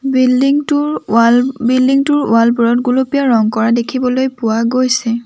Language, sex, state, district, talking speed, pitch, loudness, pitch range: Assamese, female, Assam, Sonitpur, 150 wpm, 250 Hz, -13 LUFS, 235-265 Hz